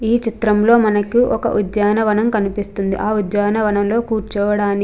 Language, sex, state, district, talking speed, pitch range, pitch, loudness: Telugu, female, Andhra Pradesh, Krishna, 125 wpm, 205-220 Hz, 210 Hz, -17 LUFS